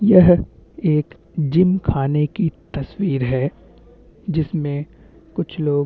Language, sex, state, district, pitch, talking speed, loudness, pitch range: Hindi, male, Chhattisgarh, Bastar, 150 Hz, 115 wpm, -20 LUFS, 145-180 Hz